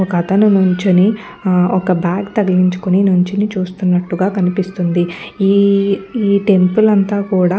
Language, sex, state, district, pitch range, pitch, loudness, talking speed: Telugu, female, Andhra Pradesh, Guntur, 180-200 Hz, 190 Hz, -14 LUFS, 105 wpm